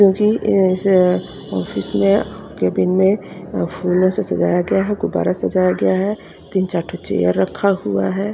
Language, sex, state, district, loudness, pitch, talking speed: Hindi, female, Haryana, Rohtak, -18 LUFS, 185 Hz, 165 wpm